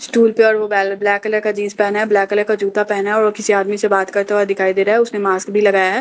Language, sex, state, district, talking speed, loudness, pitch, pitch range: Hindi, female, Bihar, Katihar, 330 wpm, -16 LUFS, 205 Hz, 200-215 Hz